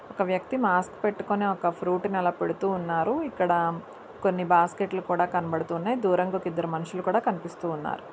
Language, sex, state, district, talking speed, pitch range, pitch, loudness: Telugu, female, Andhra Pradesh, Anantapur, 145 wpm, 175-195 Hz, 180 Hz, -27 LUFS